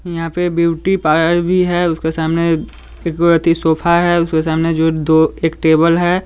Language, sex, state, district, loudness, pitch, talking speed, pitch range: Hindi, male, Bihar, Muzaffarpur, -14 LUFS, 165 Hz, 180 wpm, 160-175 Hz